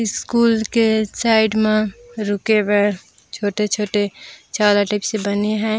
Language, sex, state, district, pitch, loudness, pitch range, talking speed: Chhattisgarhi, female, Chhattisgarh, Raigarh, 215 Hz, -18 LUFS, 205-220 Hz, 125 wpm